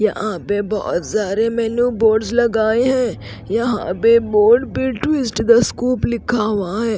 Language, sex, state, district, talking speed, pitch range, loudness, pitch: Hindi, female, Haryana, Rohtak, 155 wpm, 215-240 Hz, -17 LUFS, 230 Hz